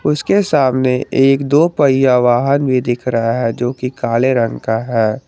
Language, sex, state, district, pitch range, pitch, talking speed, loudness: Hindi, male, Jharkhand, Garhwa, 120-140 Hz, 130 Hz, 180 wpm, -14 LUFS